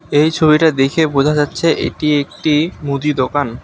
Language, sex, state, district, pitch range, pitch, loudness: Bengali, male, West Bengal, Alipurduar, 140-155 Hz, 150 Hz, -15 LUFS